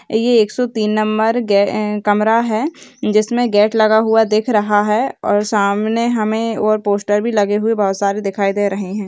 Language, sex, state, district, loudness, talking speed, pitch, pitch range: Hindi, female, Rajasthan, Churu, -16 LUFS, 180 wpm, 215 Hz, 205-225 Hz